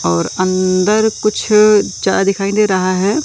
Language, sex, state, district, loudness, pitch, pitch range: Hindi, male, Madhya Pradesh, Katni, -13 LUFS, 200 Hz, 185-215 Hz